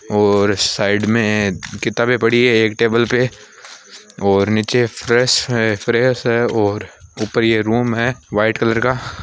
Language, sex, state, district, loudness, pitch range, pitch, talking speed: Marwari, male, Rajasthan, Nagaur, -16 LUFS, 105-120 Hz, 115 Hz, 145 wpm